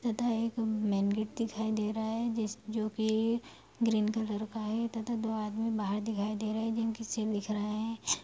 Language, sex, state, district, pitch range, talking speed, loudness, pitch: Hindi, female, Bihar, Darbhanga, 215-225 Hz, 205 wpm, -33 LUFS, 220 Hz